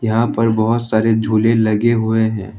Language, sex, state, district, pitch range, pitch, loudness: Hindi, male, Jharkhand, Ranchi, 110-115 Hz, 110 Hz, -15 LUFS